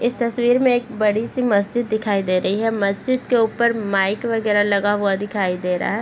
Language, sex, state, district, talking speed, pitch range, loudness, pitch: Hindi, female, Bihar, Bhagalpur, 220 wpm, 200-235 Hz, -19 LUFS, 215 Hz